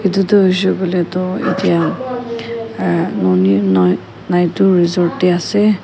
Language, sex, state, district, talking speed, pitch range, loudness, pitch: Nagamese, female, Nagaland, Kohima, 115 wpm, 170-200 Hz, -15 LUFS, 185 Hz